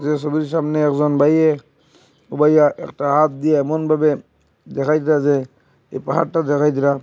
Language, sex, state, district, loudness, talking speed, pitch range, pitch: Bengali, male, Assam, Hailakandi, -17 LUFS, 135 wpm, 145-155 Hz, 150 Hz